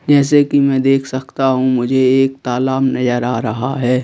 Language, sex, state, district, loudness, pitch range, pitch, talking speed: Hindi, male, Madhya Pradesh, Bhopal, -15 LUFS, 125-135 Hz, 130 Hz, 195 wpm